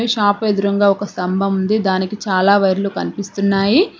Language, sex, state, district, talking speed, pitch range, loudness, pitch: Telugu, female, Telangana, Mahabubabad, 135 wpm, 195-205 Hz, -16 LUFS, 200 Hz